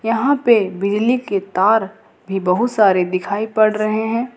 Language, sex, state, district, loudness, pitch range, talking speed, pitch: Hindi, female, Jharkhand, Ranchi, -17 LUFS, 195-230 Hz, 165 wpm, 215 Hz